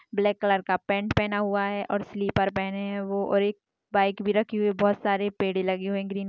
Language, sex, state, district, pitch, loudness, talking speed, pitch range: Hindi, female, Chhattisgarh, Jashpur, 200 Hz, -26 LUFS, 255 wpm, 195-205 Hz